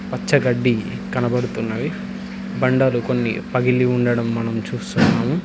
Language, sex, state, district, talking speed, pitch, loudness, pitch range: Telugu, male, Telangana, Hyderabad, 90 wpm, 125 Hz, -20 LUFS, 120-150 Hz